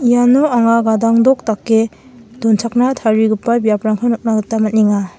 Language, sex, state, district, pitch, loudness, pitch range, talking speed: Garo, female, Meghalaya, West Garo Hills, 230 Hz, -14 LUFS, 220-240 Hz, 115 wpm